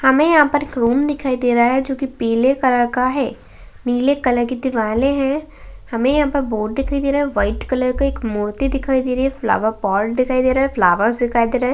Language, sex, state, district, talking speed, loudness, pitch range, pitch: Hindi, female, Uttar Pradesh, Hamirpur, 245 wpm, -18 LUFS, 235-275 Hz, 255 Hz